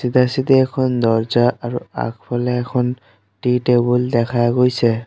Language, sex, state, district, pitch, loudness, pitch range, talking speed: Assamese, male, Assam, Sonitpur, 125 Hz, -18 LUFS, 120-125 Hz, 120 wpm